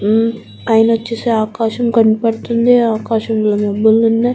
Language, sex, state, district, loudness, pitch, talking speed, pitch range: Telugu, female, Andhra Pradesh, Guntur, -14 LUFS, 225 Hz, 110 wpm, 220-230 Hz